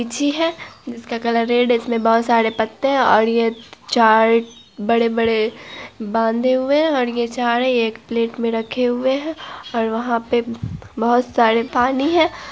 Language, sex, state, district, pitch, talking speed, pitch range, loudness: Hindi, female, Bihar, Araria, 235 Hz, 165 wpm, 230-250 Hz, -18 LUFS